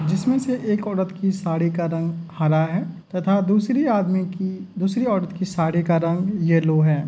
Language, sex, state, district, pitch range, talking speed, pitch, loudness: Hindi, male, Uttar Pradesh, Muzaffarnagar, 165-195 Hz, 185 wpm, 185 Hz, -22 LUFS